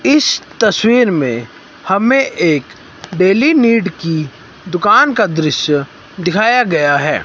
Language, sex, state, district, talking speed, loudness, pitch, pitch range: Hindi, male, Himachal Pradesh, Shimla, 115 wpm, -13 LUFS, 180 Hz, 150-230 Hz